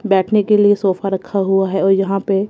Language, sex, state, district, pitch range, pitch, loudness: Hindi, female, Punjab, Kapurthala, 195-205 Hz, 195 Hz, -15 LUFS